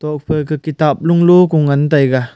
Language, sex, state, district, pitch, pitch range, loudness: Wancho, male, Arunachal Pradesh, Longding, 150 Hz, 145-160 Hz, -13 LUFS